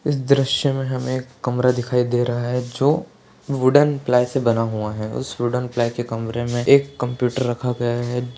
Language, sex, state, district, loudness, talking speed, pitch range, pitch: Hindi, male, Maharashtra, Solapur, -20 LUFS, 195 wpm, 120-135 Hz, 125 Hz